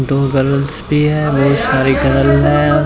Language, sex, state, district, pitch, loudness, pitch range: Hindi, male, Haryana, Rohtak, 140 Hz, -13 LUFS, 135-150 Hz